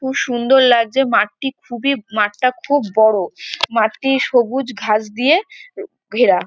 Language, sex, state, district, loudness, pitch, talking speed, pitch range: Bengali, female, West Bengal, North 24 Parganas, -16 LUFS, 255 Hz, 140 wpm, 220-275 Hz